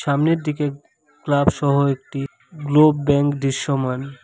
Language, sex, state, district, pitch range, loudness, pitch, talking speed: Bengali, male, West Bengal, Alipurduar, 140-150 Hz, -19 LUFS, 145 Hz, 100 wpm